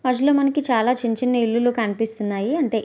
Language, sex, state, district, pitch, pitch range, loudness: Telugu, female, Andhra Pradesh, Visakhapatnam, 240 Hz, 225-255 Hz, -21 LUFS